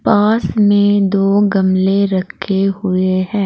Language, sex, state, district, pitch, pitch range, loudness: Hindi, female, Uttar Pradesh, Saharanpur, 195 Hz, 190-205 Hz, -14 LUFS